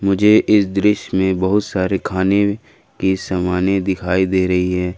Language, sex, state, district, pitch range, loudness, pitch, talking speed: Hindi, male, Jharkhand, Ranchi, 90-100 Hz, -17 LUFS, 95 Hz, 155 wpm